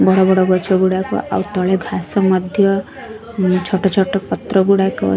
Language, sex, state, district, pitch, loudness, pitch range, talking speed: Odia, female, Odisha, Sambalpur, 190 Hz, -16 LUFS, 185-195 Hz, 150 wpm